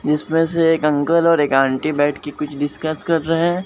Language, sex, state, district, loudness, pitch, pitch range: Hindi, male, Bihar, Katihar, -18 LUFS, 155 Hz, 145-165 Hz